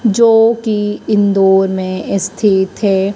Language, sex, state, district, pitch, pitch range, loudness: Hindi, male, Madhya Pradesh, Dhar, 200 Hz, 190-215 Hz, -13 LUFS